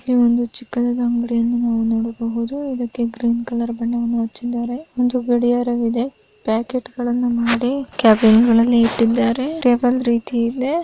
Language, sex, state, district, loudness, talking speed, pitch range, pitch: Kannada, female, Karnataka, Raichur, -18 LUFS, 125 wpm, 235-245 Hz, 240 Hz